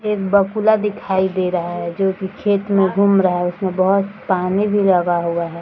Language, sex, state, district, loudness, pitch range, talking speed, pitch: Hindi, female, Bihar, Jahanabad, -17 LUFS, 180-200 Hz, 215 wpm, 190 Hz